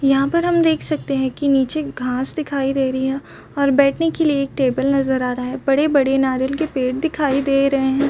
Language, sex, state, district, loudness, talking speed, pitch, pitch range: Hindi, female, Chhattisgarh, Raigarh, -18 LUFS, 245 wpm, 275 Hz, 265-290 Hz